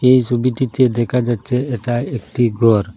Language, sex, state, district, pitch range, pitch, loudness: Bengali, male, Assam, Hailakandi, 120-125 Hz, 120 Hz, -17 LUFS